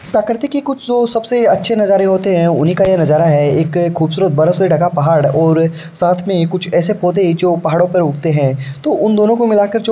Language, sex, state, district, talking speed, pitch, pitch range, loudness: Hindi, male, Uttar Pradesh, Varanasi, 230 wpm, 180 Hz, 160-205 Hz, -13 LUFS